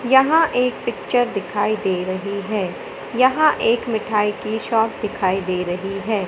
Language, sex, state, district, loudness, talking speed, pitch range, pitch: Hindi, male, Madhya Pradesh, Katni, -20 LUFS, 155 wpm, 195-240 Hz, 215 Hz